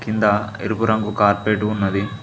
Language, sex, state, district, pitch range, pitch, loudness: Telugu, male, Telangana, Mahabubabad, 100-110 Hz, 105 Hz, -19 LUFS